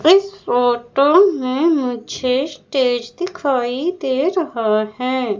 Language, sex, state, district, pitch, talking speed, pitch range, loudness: Hindi, female, Madhya Pradesh, Umaria, 260 Hz, 100 wpm, 245-335 Hz, -18 LUFS